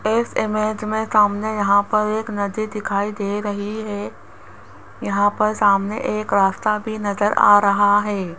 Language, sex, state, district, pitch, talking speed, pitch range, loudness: Hindi, female, Rajasthan, Jaipur, 205 Hz, 155 wpm, 200-215 Hz, -19 LUFS